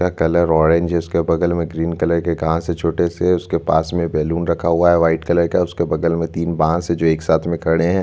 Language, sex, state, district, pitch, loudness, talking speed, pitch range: Hindi, male, Chhattisgarh, Bastar, 85 Hz, -17 LUFS, 255 wpm, 80-85 Hz